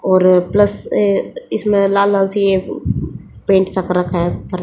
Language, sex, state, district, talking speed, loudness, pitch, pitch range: Hindi, female, Haryana, Jhajjar, 155 wpm, -15 LUFS, 195 Hz, 185-200 Hz